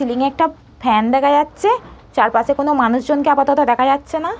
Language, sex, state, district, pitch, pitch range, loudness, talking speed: Bengali, female, West Bengal, Purulia, 280 Hz, 255-300 Hz, -16 LUFS, 165 wpm